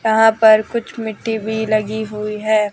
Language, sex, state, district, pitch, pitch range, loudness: Hindi, male, Rajasthan, Jaipur, 220 Hz, 215-225 Hz, -17 LUFS